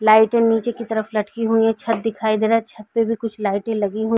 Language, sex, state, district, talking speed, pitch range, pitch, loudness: Hindi, female, Uttar Pradesh, Varanasi, 285 wpm, 215-225 Hz, 225 Hz, -20 LUFS